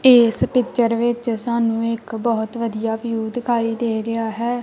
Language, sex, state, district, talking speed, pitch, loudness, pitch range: Punjabi, female, Punjab, Kapurthala, 155 wpm, 230 Hz, -20 LUFS, 225-235 Hz